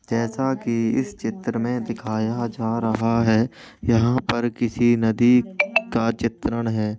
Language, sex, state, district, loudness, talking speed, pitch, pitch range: Hindi, male, Uttar Pradesh, Jalaun, -22 LUFS, 135 wpm, 115 Hz, 115-120 Hz